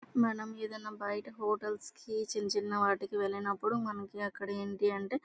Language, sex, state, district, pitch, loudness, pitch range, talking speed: Telugu, female, Andhra Pradesh, Guntur, 205 Hz, -35 LUFS, 200-220 Hz, 185 wpm